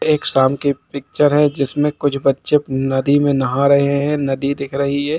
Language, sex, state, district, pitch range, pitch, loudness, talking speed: Hindi, male, Jharkhand, Jamtara, 135-145 Hz, 140 Hz, -17 LUFS, 195 wpm